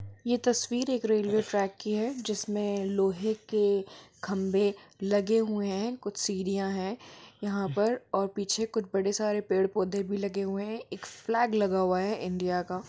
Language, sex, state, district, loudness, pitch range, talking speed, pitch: Hindi, female, Jharkhand, Jamtara, -30 LUFS, 195-220 Hz, 165 wpm, 205 Hz